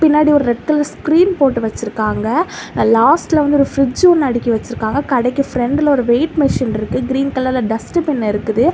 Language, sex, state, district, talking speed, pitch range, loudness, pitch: Tamil, female, Tamil Nadu, Kanyakumari, 170 wpm, 235-300 Hz, -15 LUFS, 270 Hz